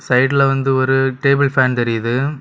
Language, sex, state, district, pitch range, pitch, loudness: Tamil, male, Tamil Nadu, Kanyakumari, 125-135 Hz, 135 Hz, -15 LUFS